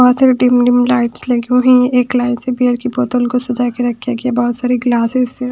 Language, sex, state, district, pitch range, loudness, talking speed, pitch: Hindi, female, Punjab, Pathankot, 245-250 Hz, -14 LUFS, 250 wpm, 245 Hz